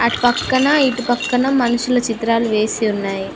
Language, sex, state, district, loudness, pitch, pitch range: Telugu, female, Telangana, Mahabubabad, -17 LUFS, 240 Hz, 225-250 Hz